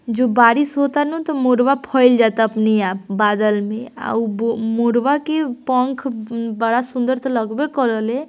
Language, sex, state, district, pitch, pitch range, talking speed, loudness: Hindi, female, Bihar, East Champaran, 240 Hz, 225-265 Hz, 165 wpm, -18 LUFS